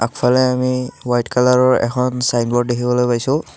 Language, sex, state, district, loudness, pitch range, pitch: Assamese, male, Assam, Kamrup Metropolitan, -16 LUFS, 120-125 Hz, 125 Hz